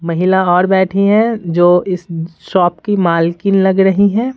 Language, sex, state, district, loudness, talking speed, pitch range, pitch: Hindi, female, Bihar, Patna, -13 LUFS, 165 wpm, 175-195 Hz, 190 Hz